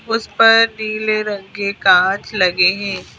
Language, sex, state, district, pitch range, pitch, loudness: Hindi, female, Madhya Pradesh, Bhopal, 195-220 Hz, 210 Hz, -15 LUFS